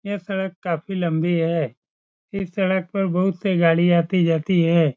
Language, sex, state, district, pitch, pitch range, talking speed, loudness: Hindi, male, Bihar, Saran, 175 Hz, 165-190 Hz, 145 wpm, -21 LUFS